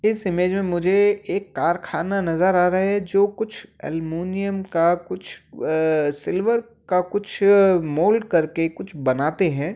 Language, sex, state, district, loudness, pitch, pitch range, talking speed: Hindi, male, Uttar Pradesh, Jyotiba Phule Nagar, -21 LUFS, 180 Hz, 165-200 Hz, 155 wpm